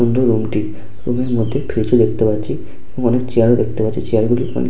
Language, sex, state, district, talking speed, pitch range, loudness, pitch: Bengali, male, West Bengal, Paschim Medinipur, 245 wpm, 105-120 Hz, -17 LUFS, 115 Hz